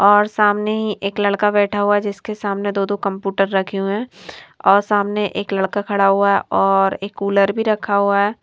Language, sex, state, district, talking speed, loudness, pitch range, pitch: Hindi, female, Himachal Pradesh, Shimla, 200 wpm, -18 LUFS, 195-205 Hz, 200 Hz